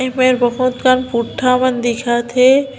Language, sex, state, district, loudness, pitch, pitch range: Hindi, female, Chhattisgarh, Bilaspur, -15 LUFS, 255 Hz, 240-255 Hz